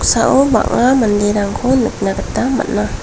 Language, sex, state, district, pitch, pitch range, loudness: Garo, female, Meghalaya, West Garo Hills, 245 Hz, 205-260 Hz, -14 LUFS